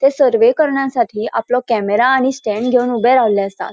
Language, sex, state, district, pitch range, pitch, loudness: Konkani, female, Goa, North and South Goa, 225-270 Hz, 250 Hz, -15 LUFS